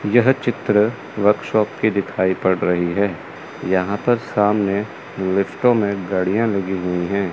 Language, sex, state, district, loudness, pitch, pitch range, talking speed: Hindi, male, Chandigarh, Chandigarh, -19 LUFS, 100 Hz, 95-105 Hz, 140 wpm